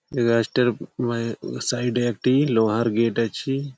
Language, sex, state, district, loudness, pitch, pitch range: Bengali, male, West Bengal, Malda, -22 LUFS, 120 Hz, 115-125 Hz